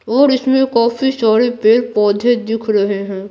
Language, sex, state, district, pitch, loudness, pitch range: Hindi, female, Bihar, Patna, 230 Hz, -14 LUFS, 210-245 Hz